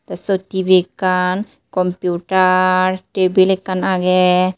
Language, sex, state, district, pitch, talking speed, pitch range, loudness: Chakma, female, Tripura, Unakoti, 185 Hz, 105 wpm, 185-190 Hz, -16 LUFS